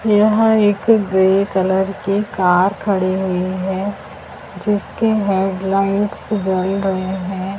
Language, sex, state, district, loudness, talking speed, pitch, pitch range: Hindi, male, Madhya Pradesh, Dhar, -17 LUFS, 105 wpm, 195 Hz, 190-205 Hz